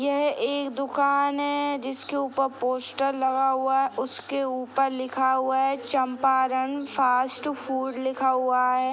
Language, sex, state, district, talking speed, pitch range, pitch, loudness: Hindi, female, Bihar, East Champaran, 155 wpm, 260-275 Hz, 265 Hz, -25 LUFS